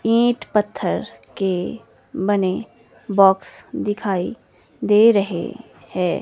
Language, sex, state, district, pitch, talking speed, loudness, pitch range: Hindi, female, Himachal Pradesh, Shimla, 200 Hz, 85 wpm, -20 LUFS, 190-215 Hz